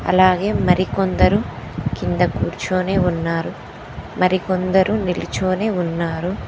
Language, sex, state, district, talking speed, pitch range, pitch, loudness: Telugu, female, Telangana, Mahabubabad, 85 wpm, 180-190 Hz, 185 Hz, -19 LUFS